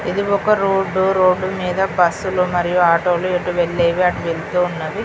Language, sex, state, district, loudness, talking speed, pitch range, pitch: Telugu, female, Telangana, Karimnagar, -17 LUFS, 105 wpm, 175-190 Hz, 180 Hz